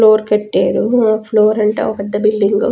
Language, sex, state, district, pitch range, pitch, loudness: Telugu, female, Telangana, Nalgonda, 210-220 Hz, 215 Hz, -14 LUFS